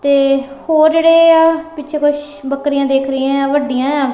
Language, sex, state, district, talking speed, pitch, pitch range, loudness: Punjabi, female, Punjab, Kapurthala, 160 wpm, 285 Hz, 275-310 Hz, -13 LUFS